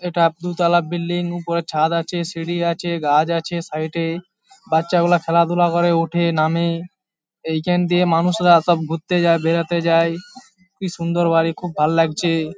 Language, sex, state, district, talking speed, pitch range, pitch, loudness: Bengali, male, West Bengal, Paschim Medinipur, 145 wpm, 165-175 Hz, 170 Hz, -19 LUFS